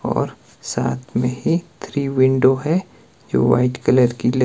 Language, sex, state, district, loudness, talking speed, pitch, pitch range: Hindi, male, Himachal Pradesh, Shimla, -19 LUFS, 150 wpm, 130 Hz, 125-140 Hz